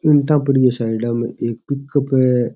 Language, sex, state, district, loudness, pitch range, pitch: Rajasthani, male, Rajasthan, Churu, -18 LUFS, 120-140 Hz, 130 Hz